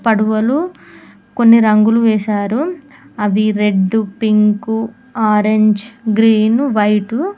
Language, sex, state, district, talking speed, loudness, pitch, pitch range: Telugu, female, Telangana, Mahabubabad, 90 wpm, -14 LUFS, 220 Hz, 210-230 Hz